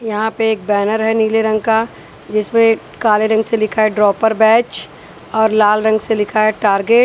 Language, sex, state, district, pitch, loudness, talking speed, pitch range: Hindi, female, Punjab, Pathankot, 220 Hz, -14 LUFS, 195 wpm, 215-225 Hz